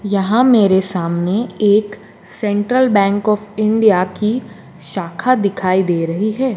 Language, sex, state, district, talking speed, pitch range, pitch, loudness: Hindi, female, Gujarat, Gandhinagar, 130 wpm, 185-215 Hz, 205 Hz, -15 LUFS